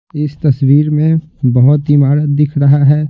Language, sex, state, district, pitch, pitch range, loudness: Hindi, male, Bihar, Patna, 145 Hz, 140-150 Hz, -11 LUFS